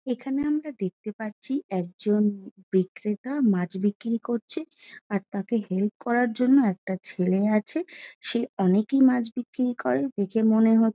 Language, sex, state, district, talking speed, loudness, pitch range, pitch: Bengali, female, West Bengal, Jhargram, 135 wpm, -26 LUFS, 200-255 Hz, 225 Hz